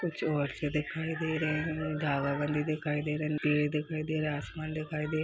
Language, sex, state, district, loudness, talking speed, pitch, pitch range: Hindi, male, Uttar Pradesh, Jalaun, -32 LUFS, 240 wpm, 155 Hz, 150-155 Hz